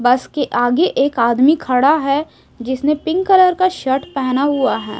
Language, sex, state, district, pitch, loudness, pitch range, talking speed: Hindi, female, Odisha, Sambalpur, 280 Hz, -15 LUFS, 260-310 Hz, 180 wpm